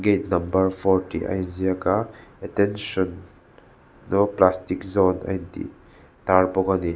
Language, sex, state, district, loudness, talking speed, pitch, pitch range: Mizo, male, Mizoram, Aizawl, -23 LUFS, 145 wpm, 95 Hz, 90-95 Hz